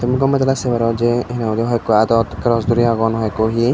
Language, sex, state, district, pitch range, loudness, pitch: Chakma, male, Tripura, Dhalai, 115-120 Hz, -17 LUFS, 115 Hz